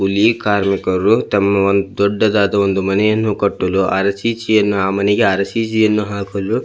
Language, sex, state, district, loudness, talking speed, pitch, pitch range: Kannada, male, Karnataka, Belgaum, -15 LUFS, 125 wpm, 100 Hz, 100-105 Hz